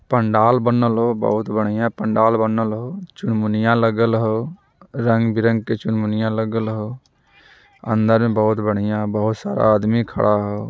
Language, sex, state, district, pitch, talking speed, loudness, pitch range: Magahi, male, Bihar, Jamui, 110 Hz, 155 wpm, -19 LUFS, 110-115 Hz